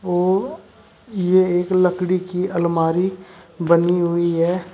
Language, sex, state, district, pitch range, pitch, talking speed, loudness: Hindi, male, Uttar Pradesh, Shamli, 170-185 Hz, 180 Hz, 115 wpm, -19 LUFS